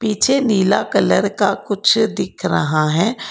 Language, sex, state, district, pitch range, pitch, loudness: Hindi, female, Karnataka, Bangalore, 170-225 Hz, 205 Hz, -16 LUFS